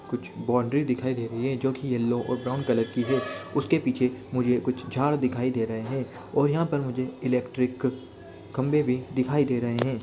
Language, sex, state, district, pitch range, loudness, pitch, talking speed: Hindi, male, Jharkhand, Jamtara, 125-130 Hz, -27 LUFS, 125 Hz, 205 wpm